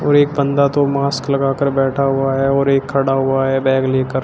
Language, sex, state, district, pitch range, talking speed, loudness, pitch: Hindi, male, Uttar Pradesh, Shamli, 135-140 Hz, 240 wpm, -16 LUFS, 135 Hz